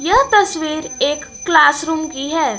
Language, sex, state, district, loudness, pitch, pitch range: Hindi, female, Jharkhand, Palamu, -15 LUFS, 315 Hz, 295-350 Hz